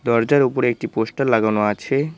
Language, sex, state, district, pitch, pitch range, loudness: Bengali, male, West Bengal, Cooch Behar, 120 Hz, 110-135 Hz, -19 LUFS